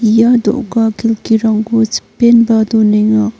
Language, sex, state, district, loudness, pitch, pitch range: Garo, female, Meghalaya, North Garo Hills, -11 LUFS, 225 Hz, 220-230 Hz